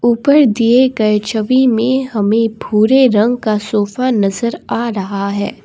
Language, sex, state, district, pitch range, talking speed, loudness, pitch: Hindi, female, Assam, Kamrup Metropolitan, 210-250 Hz, 150 wpm, -14 LUFS, 225 Hz